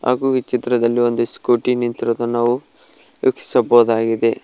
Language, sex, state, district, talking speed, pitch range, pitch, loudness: Kannada, male, Karnataka, Koppal, 110 wpm, 120-125 Hz, 120 Hz, -18 LUFS